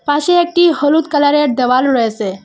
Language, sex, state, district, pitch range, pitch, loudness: Bengali, female, Assam, Hailakandi, 250-320 Hz, 290 Hz, -13 LUFS